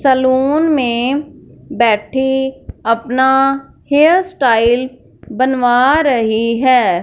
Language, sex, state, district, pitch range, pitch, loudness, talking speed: Hindi, female, Punjab, Fazilka, 240-275 Hz, 260 Hz, -14 LUFS, 75 wpm